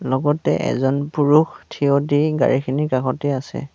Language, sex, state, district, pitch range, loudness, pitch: Assamese, male, Assam, Sonitpur, 135-150 Hz, -19 LUFS, 145 Hz